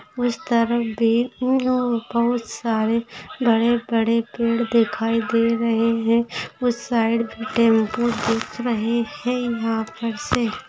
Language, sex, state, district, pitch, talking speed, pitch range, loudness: Hindi, female, Maharashtra, Solapur, 230 Hz, 110 wpm, 225-240 Hz, -21 LUFS